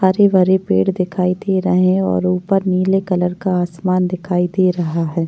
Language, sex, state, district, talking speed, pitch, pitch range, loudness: Hindi, female, Maharashtra, Chandrapur, 195 wpm, 185 Hz, 180-190 Hz, -16 LUFS